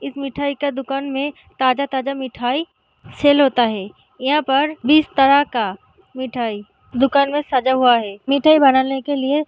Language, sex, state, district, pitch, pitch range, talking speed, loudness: Hindi, female, Uttar Pradesh, Deoria, 270 Hz, 255-285 Hz, 165 wpm, -18 LUFS